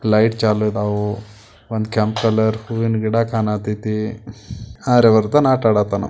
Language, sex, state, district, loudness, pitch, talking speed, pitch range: Kannada, male, Karnataka, Belgaum, -18 LUFS, 110 Hz, 120 wpm, 105-115 Hz